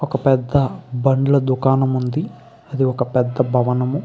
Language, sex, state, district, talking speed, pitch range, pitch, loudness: Telugu, male, Andhra Pradesh, Krishna, 150 wpm, 125-140 Hz, 135 Hz, -18 LUFS